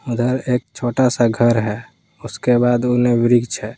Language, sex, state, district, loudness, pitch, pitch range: Hindi, male, Jharkhand, Palamu, -17 LUFS, 120 Hz, 115-125 Hz